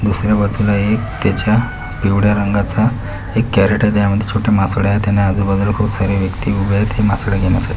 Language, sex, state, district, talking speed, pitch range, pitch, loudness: Marathi, male, Maharashtra, Pune, 195 wpm, 100-105 Hz, 100 Hz, -15 LUFS